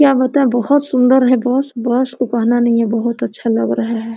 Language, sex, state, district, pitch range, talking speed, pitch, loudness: Hindi, female, Jharkhand, Sahebganj, 230-260 Hz, 145 wpm, 245 Hz, -15 LUFS